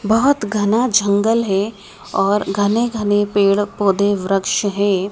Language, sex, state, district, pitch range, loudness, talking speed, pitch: Hindi, female, Madhya Pradesh, Dhar, 200-215 Hz, -17 LUFS, 130 wpm, 205 Hz